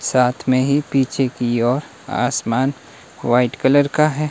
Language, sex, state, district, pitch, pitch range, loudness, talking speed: Hindi, male, Himachal Pradesh, Shimla, 130 Hz, 125-140 Hz, -18 LUFS, 155 wpm